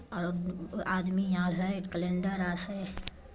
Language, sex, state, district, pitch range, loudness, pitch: Magahi, female, Bihar, Samastipur, 175-190 Hz, -33 LUFS, 180 Hz